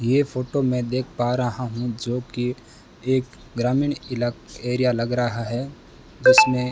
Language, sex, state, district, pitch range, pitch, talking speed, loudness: Hindi, male, Rajasthan, Bikaner, 120-130 Hz, 125 Hz, 160 wpm, -22 LUFS